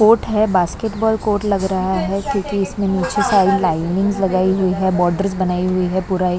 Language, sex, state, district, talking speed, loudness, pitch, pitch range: Hindi, female, Maharashtra, Mumbai Suburban, 195 wpm, -17 LUFS, 190 Hz, 185-200 Hz